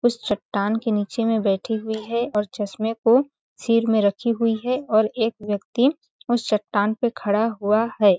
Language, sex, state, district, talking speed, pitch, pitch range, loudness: Hindi, female, Chhattisgarh, Balrampur, 185 wpm, 220 Hz, 210-235 Hz, -22 LUFS